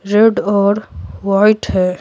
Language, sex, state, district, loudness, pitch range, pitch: Hindi, female, Bihar, Patna, -14 LUFS, 195-210 Hz, 200 Hz